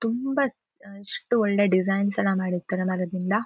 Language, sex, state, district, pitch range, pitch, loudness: Kannada, female, Karnataka, Shimoga, 185-230 Hz, 200 Hz, -25 LUFS